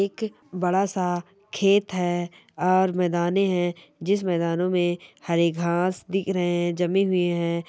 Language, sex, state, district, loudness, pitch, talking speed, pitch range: Hindi, male, Chhattisgarh, Sarguja, -24 LUFS, 180 Hz, 140 wpm, 175-190 Hz